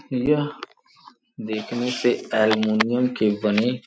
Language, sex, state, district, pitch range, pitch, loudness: Hindi, male, Uttar Pradesh, Gorakhpur, 110-125 Hz, 120 Hz, -22 LUFS